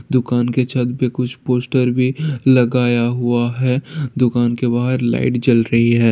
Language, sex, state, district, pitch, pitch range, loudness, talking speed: Hindi, male, Bihar, Jahanabad, 125 Hz, 120-130 Hz, -17 LUFS, 165 wpm